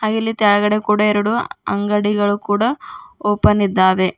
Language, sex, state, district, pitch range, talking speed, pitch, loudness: Kannada, female, Karnataka, Bidar, 205-215 Hz, 130 wpm, 210 Hz, -17 LUFS